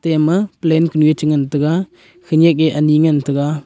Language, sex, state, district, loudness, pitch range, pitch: Wancho, male, Arunachal Pradesh, Longding, -15 LUFS, 150-165 Hz, 155 Hz